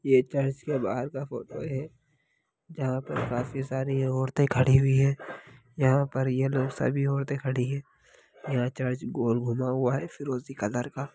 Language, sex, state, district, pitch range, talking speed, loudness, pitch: Hindi, male, Bihar, Lakhisarai, 130-140 Hz, 170 wpm, -28 LUFS, 130 Hz